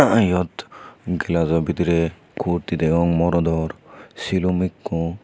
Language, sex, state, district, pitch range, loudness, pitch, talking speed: Chakma, male, Tripura, Unakoti, 85-90 Hz, -21 LUFS, 85 Hz, 105 wpm